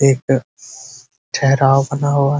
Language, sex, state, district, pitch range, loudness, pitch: Hindi, male, Bihar, Muzaffarpur, 130-140 Hz, -16 LUFS, 135 Hz